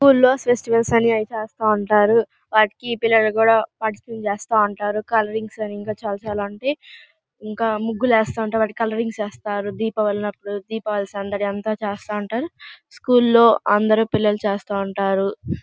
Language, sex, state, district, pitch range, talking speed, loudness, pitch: Telugu, female, Andhra Pradesh, Guntur, 205-225 Hz, 150 wpm, -20 LUFS, 215 Hz